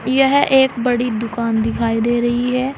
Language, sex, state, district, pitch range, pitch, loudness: Hindi, female, Uttar Pradesh, Saharanpur, 230-260 Hz, 240 Hz, -16 LUFS